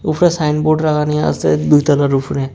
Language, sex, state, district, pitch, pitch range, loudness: Bengali, male, Tripura, West Tripura, 150 Hz, 135-155 Hz, -14 LUFS